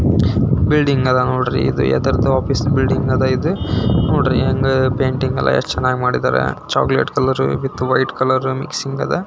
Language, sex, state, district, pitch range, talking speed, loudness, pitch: Kannada, male, Karnataka, Belgaum, 130-135 Hz, 135 wpm, -17 LUFS, 130 Hz